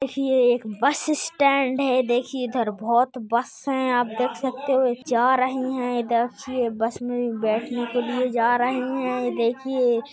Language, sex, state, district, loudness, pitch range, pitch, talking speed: Hindi, female, Maharashtra, Pune, -23 LUFS, 240-260 Hz, 250 Hz, 170 wpm